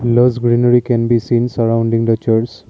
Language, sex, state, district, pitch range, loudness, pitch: English, male, Assam, Kamrup Metropolitan, 115-120 Hz, -14 LUFS, 120 Hz